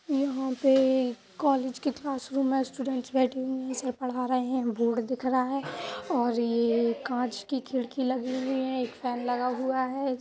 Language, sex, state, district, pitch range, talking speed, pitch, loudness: Hindi, female, Uttar Pradesh, Budaun, 245-265 Hz, 170 wpm, 255 Hz, -29 LUFS